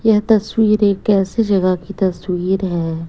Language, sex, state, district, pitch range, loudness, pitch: Hindi, female, Chhattisgarh, Raipur, 185-210 Hz, -16 LUFS, 195 Hz